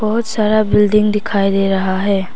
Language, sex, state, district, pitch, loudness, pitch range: Hindi, female, Arunachal Pradesh, Papum Pare, 210 Hz, -15 LUFS, 195-215 Hz